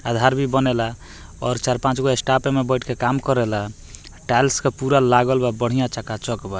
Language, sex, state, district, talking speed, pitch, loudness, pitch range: Bhojpuri, male, Bihar, Muzaffarpur, 170 wpm, 125 Hz, -20 LUFS, 115-130 Hz